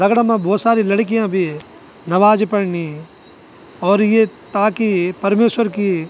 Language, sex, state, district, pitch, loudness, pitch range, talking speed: Garhwali, male, Uttarakhand, Tehri Garhwal, 205 Hz, -16 LUFS, 185-220 Hz, 150 wpm